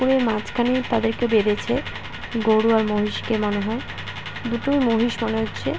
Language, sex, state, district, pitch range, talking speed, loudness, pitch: Bengali, female, West Bengal, Paschim Medinipur, 220-240 Hz, 135 wpm, -22 LUFS, 225 Hz